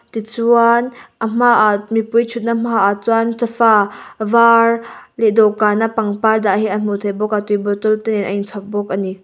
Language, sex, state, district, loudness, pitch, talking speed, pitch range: Mizo, female, Mizoram, Aizawl, -15 LUFS, 220 Hz, 190 wpm, 205-230 Hz